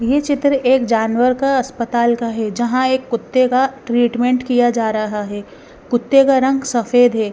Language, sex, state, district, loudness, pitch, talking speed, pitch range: Hindi, female, Bihar, West Champaran, -16 LUFS, 245 Hz, 180 wpm, 235-260 Hz